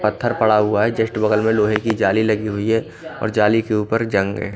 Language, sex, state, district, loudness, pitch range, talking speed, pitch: Hindi, male, Bihar, Katihar, -18 LUFS, 105-110 Hz, 250 wpm, 110 Hz